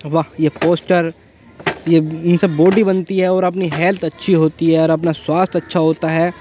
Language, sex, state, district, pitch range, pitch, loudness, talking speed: Hindi, male, Uttar Pradesh, Jyotiba Phule Nagar, 160-185 Hz, 170 Hz, -16 LUFS, 185 wpm